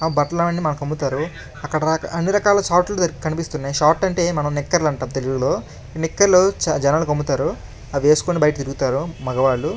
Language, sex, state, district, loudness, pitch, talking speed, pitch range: Telugu, male, Andhra Pradesh, Krishna, -19 LUFS, 155 Hz, 135 wpm, 140-170 Hz